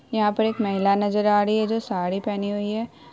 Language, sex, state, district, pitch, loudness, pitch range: Hindi, female, Bihar, Saharsa, 210 Hz, -23 LUFS, 200-220 Hz